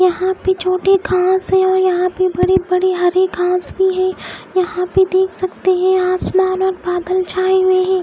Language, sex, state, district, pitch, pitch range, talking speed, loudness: Hindi, female, Odisha, Khordha, 370 Hz, 365-375 Hz, 185 wpm, -15 LUFS